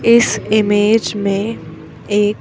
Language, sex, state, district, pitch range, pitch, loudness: Hindi, female, Madhya Pradesh, Bhopal, 200-220 Hz, 205 Hz, -15 LUFS